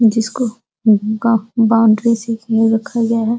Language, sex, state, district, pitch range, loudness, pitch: Hindi, female, Uttar Pradesh, Deoria, 225-230 Hz, -15 LUFS, 225 Hz